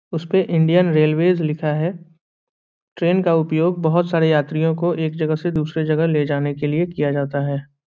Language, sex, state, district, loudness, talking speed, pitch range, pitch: Hindi, male, Bihar, Saran, -19 LUFS, 185 wpm, 150-170 Hz, 160 Hz